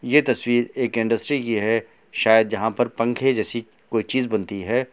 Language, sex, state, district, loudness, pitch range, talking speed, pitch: Hindi, male, Bihar, Gopalganj, -22 LUFS, 110-125 Hz, 185 wpm, 115 Hz